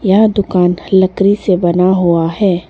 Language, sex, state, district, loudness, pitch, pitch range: Hindi, female, Arunachal Pradesh, Papum Pare, -12 LUFS, 185 Hz, 175-200 Hz